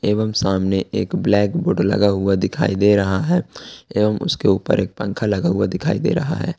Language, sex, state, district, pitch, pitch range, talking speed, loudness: Hindi, male, Jharkhand, Ranchi, 100 Hz, 95-105 Hz, 200 wpm, -19 LUFS